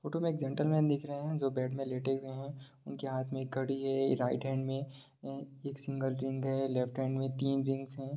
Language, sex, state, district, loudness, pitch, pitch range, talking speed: Hindi, male, Bihar, Sitamarhi, -35 LUFS, 135 Hz, 135-140 Hz, 235 wpm